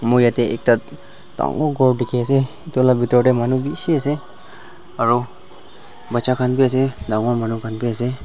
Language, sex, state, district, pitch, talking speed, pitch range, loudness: Nagamese, male, Nagaland, Dimapur, 125 Hz, 165 wpm, 120-135 Hz, -19 LUFS